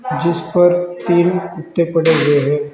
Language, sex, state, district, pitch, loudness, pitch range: Hindi, male, Uttar Pradesh, Saharanpur, 170 Hz, -15 LUFS, 155-175 Hz